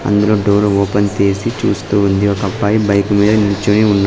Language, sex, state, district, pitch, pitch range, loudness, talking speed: Telugu, male, Andhra Pradesh, Sri Satya Sai, 100 Hz, 100-105 Hz, -14 LUFS, 190 wpm